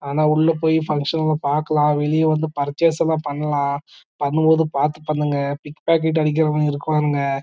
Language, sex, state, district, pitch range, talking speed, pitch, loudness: Tamil, male, Karnataka, Chamarajanagar, 145-160 Hz, 135 wpm, 150 Hz, -20 LUFS